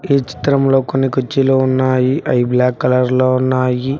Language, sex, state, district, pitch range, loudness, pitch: Telugu, male, Telangana, Mahabubabad, 125-135 Hz, -15 LUFS, 130 Hz